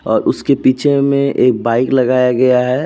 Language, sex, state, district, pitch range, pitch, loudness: Hindi, male, Uttar Pradesh, Jyotiba Phule Nagar, 125-140 Hz, 130 Hz, -13 LUFS